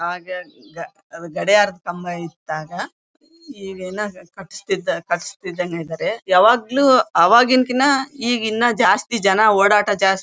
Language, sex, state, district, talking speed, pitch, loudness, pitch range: Kannada, female, Karnataka, Bellary, 80 wpm, 200 Hz, -17 LUFS, 180-240 Hz